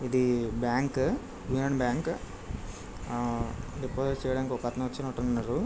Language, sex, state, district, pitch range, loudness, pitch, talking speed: Telugu, male, Andhra Pradesh, Krishna, 120-130 Hz, -31 LUFS, 125 Hz, 105 wpm